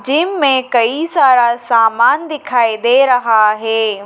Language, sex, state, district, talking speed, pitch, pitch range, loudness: Hindi, female, Madhya Pradesh, Dhar, 135 wpm, 240 Hz, 225-270 Hz, -12 LUFS